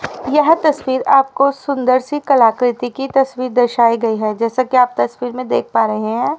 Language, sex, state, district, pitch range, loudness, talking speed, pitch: Hindi, male, Haryana, Rohtak, 235-270 Hz, -15 LUFS, 190 wpm, 255 Hz